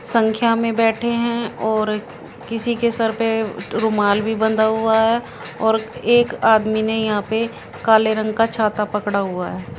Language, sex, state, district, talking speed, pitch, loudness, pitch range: Hindi, female, Haryana, Jhajjar, 165 wpm, 220 Hz, -19 LUFS, 220-230 Hz